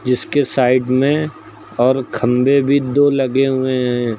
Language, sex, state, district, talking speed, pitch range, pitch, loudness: Hindi, male, Uttar Pradesh, Lucknow, 145 wpm, 125-140 Hz, 130 Hz, -16 LUFS